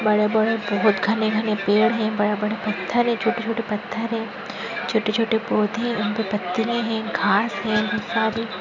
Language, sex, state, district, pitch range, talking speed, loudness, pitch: Hindi, female, Maharashtra, Nagpur, 210-230 Hz, 165 wpm, -22 LUFS, 220 Hz